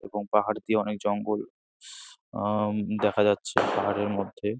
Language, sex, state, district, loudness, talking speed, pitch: Bengali, male, West Bengal, Jalpaiguri, -27 LUFS, 130 wpm, 105 Hz